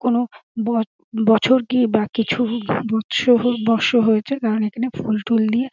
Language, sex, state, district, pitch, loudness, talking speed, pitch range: Bengali, female, West Bengal, Dakshin Dinajpur, 230 Hz, -19 LUFS, 135 wpm, 220-245 Hz